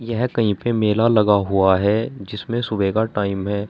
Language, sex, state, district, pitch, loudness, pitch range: Hindi, male, Uttar Pradesh, Saharanpur, 105 Hz, -19 LUFS, 100-115 Hz